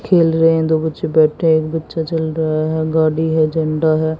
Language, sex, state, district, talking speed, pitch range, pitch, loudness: Hindi, female, Haryana, Jhajjar, 230 wpm, 155-160 Hz, 160 Hz, -16 LUFS